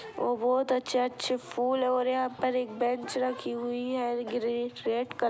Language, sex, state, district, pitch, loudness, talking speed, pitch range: Hindi, female, Bihar, Sitamarhi, 250 Hz, -30 LUFS, 190 wpm, 240-255 Hz